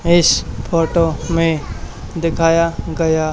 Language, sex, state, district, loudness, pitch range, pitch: Hindi, male, Haryana, Charkhi Dadri, -16 LUFS, 160-165 Hz, 165 Hz